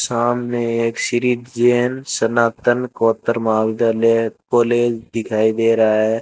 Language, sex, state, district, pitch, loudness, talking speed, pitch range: Hindi, male, Rajasthan, Bikaner, 115 Hz, -18 LUFS, 115 wpm, 115-120 Hz